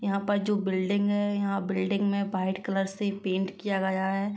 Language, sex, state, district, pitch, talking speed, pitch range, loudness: Hindi, female, Uttar Pradesh, Jyotiba Phule Nagar, 195 Hz, 205 wpm, 190-200 Hz, -28 LUFS